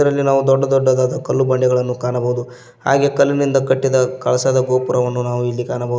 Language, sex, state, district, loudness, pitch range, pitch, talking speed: Kannada, male, Karnataka, Koppal, -17 LUFS, 125-135 Hz, 130 Hz, 150 wpm